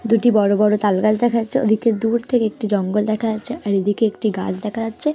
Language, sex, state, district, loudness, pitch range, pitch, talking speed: Bengali, female, West Bengal, Purulia, -19 LUFS, 210-230 Hz, 215 Hz, 255 wpm